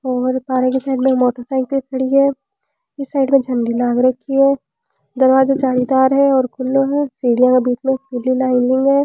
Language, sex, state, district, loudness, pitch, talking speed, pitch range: Rajasthani, female, Rajasthan, Churu, -16 LUFS, 260 Hz, 185 wpm, 255-275 Hz